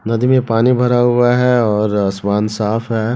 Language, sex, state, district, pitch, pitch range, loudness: Hindi, male, Bihar, Begusarai, 115 Hz, 105-125 Hz, -14 LUFS